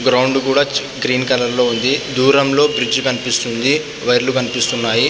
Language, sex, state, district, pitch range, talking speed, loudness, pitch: Telugu, male, Andhra Pradesh, Visakhapatnam, 125-140 Hz, 155 wpm, -15 LUFS, 130 Hz